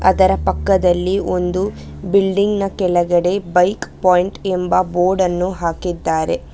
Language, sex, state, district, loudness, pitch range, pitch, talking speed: Kannada, female, Karnataka, Bangalore, -17 LUFS, 175-190 Hz, 180 Hz, 110 wpm